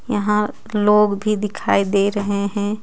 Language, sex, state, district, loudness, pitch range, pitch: Hindi, female, Jharkhand, Ranchi, -19 LUFS, 200-210 Hz, 210 Hz